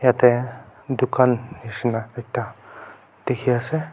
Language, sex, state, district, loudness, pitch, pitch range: Nagamese, male, Nagaland, Kohima, -22 LUFS, 125 Hz, 120-130 Hz